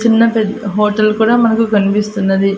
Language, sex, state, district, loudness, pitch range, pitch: Telugu, female, Andhra Pradesh, Annamaya, -13 LUFS, 205-225 Hz, 215 Hz